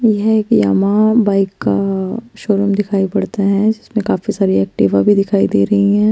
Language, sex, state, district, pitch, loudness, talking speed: Hindi, female, Chandigarh, Chandigarh, 200 Hz, -14 LUFS, 185 wpm